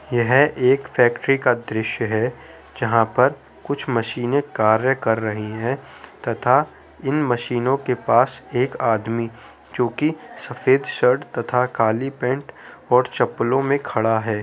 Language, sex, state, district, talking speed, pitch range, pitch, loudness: Hindi, male, Uttar Pradesh, Muzaffarnagar, 135 wpm, 115-135 Hz, 125 Hz, -20 LUFS